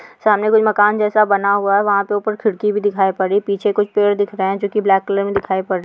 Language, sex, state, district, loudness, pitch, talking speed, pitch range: Hindi, female, Uttar Pradesh, Muzaffarnagar, -16 LUFS, 205 Hz, 305 wpm, 200-210 Hz